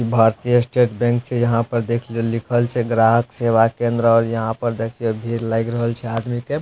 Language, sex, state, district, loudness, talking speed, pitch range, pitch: Maithili, male, Bihar, Supaul, -19 LUFS, 210 wpm, 115-120 Hz, 115 Hz